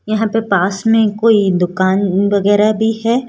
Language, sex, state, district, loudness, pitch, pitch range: Hindi, female, Rajasthan, Jaipur, -14 LUFS, 210 Hz, 195-225 Hz